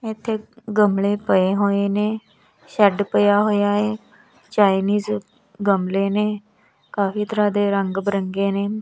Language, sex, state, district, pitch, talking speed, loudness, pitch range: Punjabi, female, Punjab, Kapurthala, 205 Hz, 120 wpm, -20 LUFS, 200-210 Hz